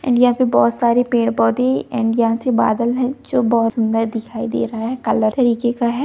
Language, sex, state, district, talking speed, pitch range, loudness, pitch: Hindi, female, Bihar, Jahanabad, 200 wpm, 225-245 Hz, -17 LUFS, 235 Hz